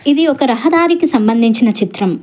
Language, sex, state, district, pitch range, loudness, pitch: Telugu, female, Telangana, Hyderabad, 225-315 Hz, -12 LUFS, 245 Hz